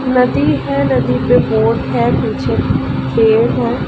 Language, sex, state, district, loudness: Hindi, female, Uttar Pradesh, Ghazipur, -14 LUFS